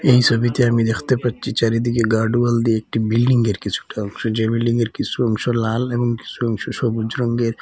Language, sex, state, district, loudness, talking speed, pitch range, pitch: Bengali, male, Assam, Hailakandi, -19 LUFS, 180 wpm, 110-120 Hz, 115 Hz